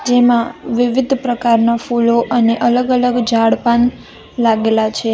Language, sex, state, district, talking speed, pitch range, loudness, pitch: Gujarati, female, Gujarat, Valsad, 115 wpm, 230-245 Hz, -14 LUFS, 235 Hz